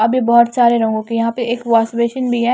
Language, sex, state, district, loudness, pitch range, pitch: Hindi, female, Punjab, Kapurthala, -15 LUFS, 230-240 Hz, 235 Hz